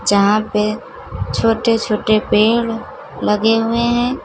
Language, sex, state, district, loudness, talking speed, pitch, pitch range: Hindi, female, Uttar Pradesh, Lucknow, -16 LUFS, 115 wpm, 225 Hz, 210-230 Hz